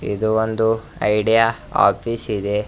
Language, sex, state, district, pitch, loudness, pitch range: Kannada, male, Karnataka, Bidar, 110 Hz, -19 LUFS, 105-115 Hz